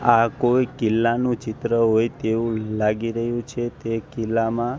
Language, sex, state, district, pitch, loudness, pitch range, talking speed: Gujarati, male, Gujarat, Gandhinagar, 115 Hz, -22 LUFS, 110-120 Hz, 140 wpm